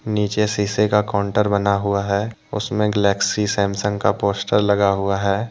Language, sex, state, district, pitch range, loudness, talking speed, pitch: Hindi, male, Jharkhand, Deoghar, 100-105 Hz, -19 LUFS, 165 wpm, 100 Hz